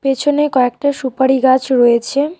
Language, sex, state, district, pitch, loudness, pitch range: Bengali, female, West Bengal, Alipurduar, 265 Hz, -14 LUFS, 255-285 Hz